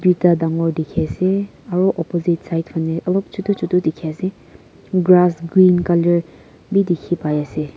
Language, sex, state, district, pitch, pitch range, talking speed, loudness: Nagamese, female, Nagaland, Kohima, 175 Hz, 165-185 Hz, 145 wpm, -18 LUFS